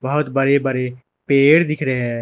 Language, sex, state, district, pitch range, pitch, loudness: Hindi, male, Arunachal Pradesh, Lower Dibang Valley, 125-145 Hz, 135 Hz, -17 LUFS